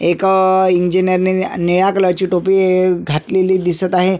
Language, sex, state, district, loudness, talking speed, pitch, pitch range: Marathi, male, Maharashtra, Sindhudurg, -14 LUFS, 145 wpm, 185 Hz, 180-190 Hz